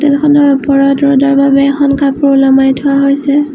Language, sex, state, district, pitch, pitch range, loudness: Assamese, female, Assam, Sonitpur, 275 Hz, 275-285 Hz, -9 LUFS